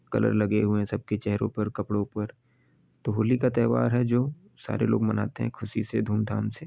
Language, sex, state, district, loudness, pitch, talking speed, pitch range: Bhojpuri, male, Uttar Pradesh, Ghazipur, -27 LUFS, 110 Hz, 215 wpm, 105-115 Hz